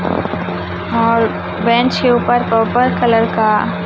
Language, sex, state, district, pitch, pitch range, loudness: Hindi, female, Chhattisgarh, Raipur, 230 Hz, 225-240 Hz, -15 LUFS